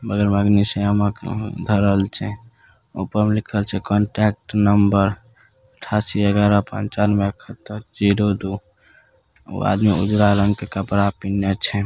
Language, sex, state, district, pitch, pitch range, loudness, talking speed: Maithili, male, Bihar, Saharsa, 105 Hz, 100-105 Hz, -19 LUFS, 125 wpm